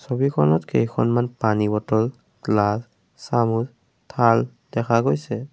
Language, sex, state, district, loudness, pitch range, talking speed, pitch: Assamese, male, Assam, Kamrup Metropolitan, -21 LUFS, 105-120 Hz, 100 wpm, 115 Hz